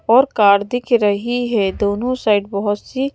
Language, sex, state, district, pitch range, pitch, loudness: Hindi, female, Madhya Pradesh, Bhopal, 205-245 Hz, 215 Hz, -17 LUFS